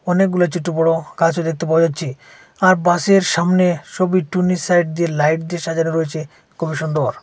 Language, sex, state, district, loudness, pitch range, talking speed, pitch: Bengali, male, Assam, Hailakandi, -17 LUFS, 160-180 Hz, 165 wpm, 165 Hz